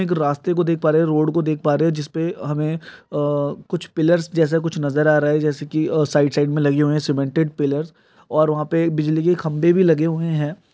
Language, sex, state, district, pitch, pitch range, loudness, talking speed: Hindi, male, Andhra Pradesh, Krishna, 155 Hz, 150-165 Hz, -19 LUFS, 245 wpm